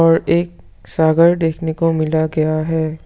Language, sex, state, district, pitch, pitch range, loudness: Hindi, male, Assam, Sonitpur, 160 Hz, 155-165 Hz, -16 LUFS